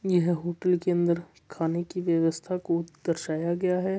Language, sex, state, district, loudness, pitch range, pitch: Marwari, male, Rajasthan, Churu, -27 LUFS, 170-180 Hz, 175 Hz